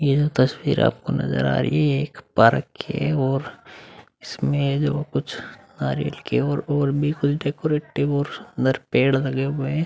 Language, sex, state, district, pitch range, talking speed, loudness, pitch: Hindi, male, Uttar Pradesh, Muzaffarnagar, 135-150 Hz, 170 wpm, -22 LUFS, 140 Hz